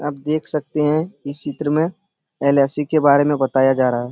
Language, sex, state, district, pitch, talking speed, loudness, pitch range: Hindi, male, Bihar, Supaul, 145 Hz, 220 wpm, -18 LUFS, 140-155 Hz